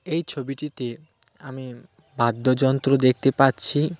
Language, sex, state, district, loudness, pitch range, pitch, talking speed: Bengali, male, West Bengal, Cooch Behar, -22 LUFS, 130-150 Hz, 135 Hz, 105 wpm